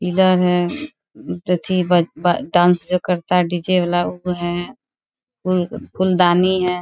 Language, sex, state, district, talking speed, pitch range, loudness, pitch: Hindi, female, Bihar, Bhagalpur, 125 wpm, 175-185 Hz, -18 LUFS, 180 Hz